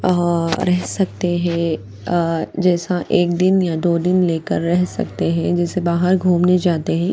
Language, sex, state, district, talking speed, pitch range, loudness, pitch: Hindi, female, Bihar, Patna, 160 wpm, 170-180 Hz, -18 LUFS, 175 Hz